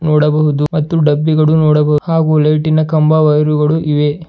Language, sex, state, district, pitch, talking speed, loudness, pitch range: Kannada, male, Karnataka, Bidar, 155 Hz, 125 wpm, -12 LUFS, 150-155 Hz